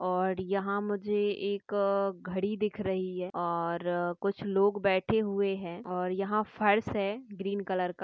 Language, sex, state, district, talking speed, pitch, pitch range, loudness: Hindi, female, Maharashtra, Nagpur, 165 wpm, 195 Hz, 185-205 Hz, -31 LUFS